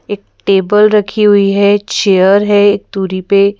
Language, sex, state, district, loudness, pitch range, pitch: Hindi, female, Madhya Pradesh, Bhopal, -10 LUFS, 195-205 Hz, 200 Hz